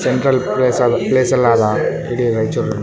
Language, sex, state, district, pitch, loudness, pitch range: Kannada, male, Karnataka, Raichur, 125 Hz, -15 LUFS, 120-130 Hz